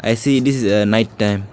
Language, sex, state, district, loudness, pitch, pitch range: English, male, Arunachal Pradesh, Lower Dibang Valley, -16 LUFS, 110 Hz, 105-130 Hz